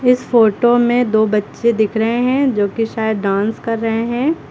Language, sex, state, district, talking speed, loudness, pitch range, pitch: Hindi, female, Uttar Pradesh, Lucknow, 200 wpm, -16 LUFS, 220-240 Hz, 225 Hz